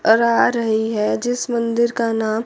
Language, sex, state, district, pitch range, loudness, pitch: Hindi, female, Chandigarh, Chandigarh, 220-235 Hz, -18 LUFS, 230 Hz